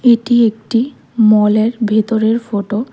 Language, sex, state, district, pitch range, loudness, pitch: Bengali, female, Tripura, West Tripura, 215-235 Hz, -14 LUFS, 225 Hz